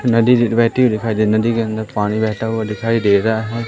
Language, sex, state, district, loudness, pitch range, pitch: Hindi, male, Madhya Pradesh, Katni, -16 LUFS, 110-115 Hz, 110 Hz